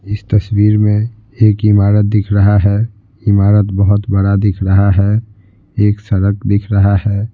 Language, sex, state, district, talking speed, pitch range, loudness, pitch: Hindi, male, Bihar, Patna, 165 wpm, 100-105 Hz, -13 LUFS, 105 Hz